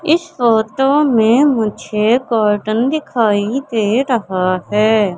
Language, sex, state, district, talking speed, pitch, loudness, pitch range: Hindi, female, Madhya Pradesh, Katni, 105 wpm, 225 Hz, -15 LUFS, 210-265 Hz